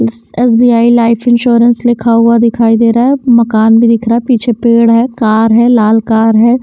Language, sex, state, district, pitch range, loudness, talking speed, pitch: Hindi, female, Himachal Pradesh, Shimla, 225-240 Hz, -8 LUFS, 200 wpm, 235 Hz